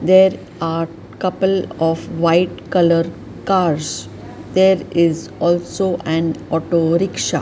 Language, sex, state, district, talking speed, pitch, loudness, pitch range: English, male, Maharashtra, Mumbai Suburban, 105 wpm, 170 Hz, -18 LUFS, 165-185 Hz